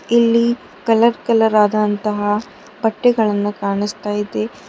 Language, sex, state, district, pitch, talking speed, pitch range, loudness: Kannada, female, Karnataka, Bidar, 210 Hz, 90 wpm, 205-230 Hz, -17 LUFS